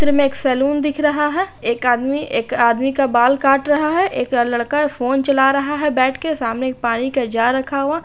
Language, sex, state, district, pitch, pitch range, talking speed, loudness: Hindi, female, Bihar, Bhagalpur, 275 Hz, 250-295 Hz, 230 wpm, -17 LUFS